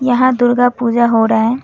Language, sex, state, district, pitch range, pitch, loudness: Hindi, female, West Bengal, Alipurduar, 230-245 Hz, 245 Hz, -13 LUFS